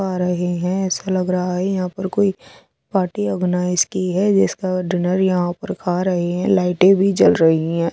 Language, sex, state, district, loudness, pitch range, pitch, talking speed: Hindi, female, Odisha, Sambalpur, -18 LUFS, 180-190 Hz, 185 Hz, 205 wpm